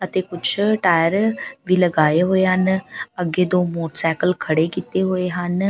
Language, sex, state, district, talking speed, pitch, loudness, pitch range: Punjabi, female, Punjab, Pathankot, 145 wpm, 180 Hz, -19 LUFS, 170-185 Hz